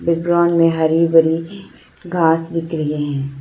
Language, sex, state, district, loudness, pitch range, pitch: Hindi, female, Arunachal Pradesh, Lower Dibang Valley, -16 LUFS, 160-170 Hz, 165 Hz